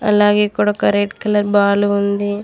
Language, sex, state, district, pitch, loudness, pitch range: Telugu, female, Telangana, Mahabubabad, 205 Hz, -15 LUFS, 205-210 Hz